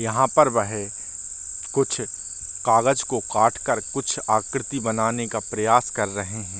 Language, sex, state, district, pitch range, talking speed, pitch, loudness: Hindi, male, Bihar, Darbhanga, 100-130 Hz, 145 wpm, 110 Hz, -23 LUFS